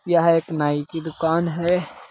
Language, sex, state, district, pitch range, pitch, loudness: Hindi, male, Uttar Pradesh, Muzaffarnagar, 160-170 Hz, 165 Hz, -21 LUFS